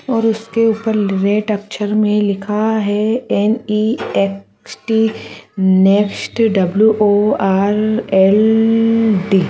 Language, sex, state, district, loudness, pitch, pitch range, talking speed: Hindi, female, Chhattisgarh, Sarguja, -15 LUFS, 210 Hz, 200-220 Hz, 75 wpm